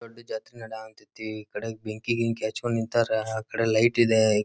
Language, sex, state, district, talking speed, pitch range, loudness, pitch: Kannada, male, Karnataka, Dharwad, 175 wpm, 110-115 Hz, -26 LUFS, 110 Hz